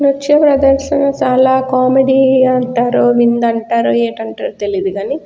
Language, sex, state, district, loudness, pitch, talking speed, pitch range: Telugu, female, Andhra Pradesh, Guntur, -12 LUFS, 255 Hz, 125 wpm, 230-275 Hz